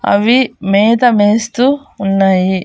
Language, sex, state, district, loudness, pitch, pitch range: Telugu, female, Andhra Pradesh, Annamaya, -12 LUFS, 210 Hz, 195-245 Hz